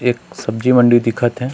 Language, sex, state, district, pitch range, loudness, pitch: Surgujia, male, Chhattisgarh, Sarguja, 120-125 Hz, -15 LUFS, 120 Hz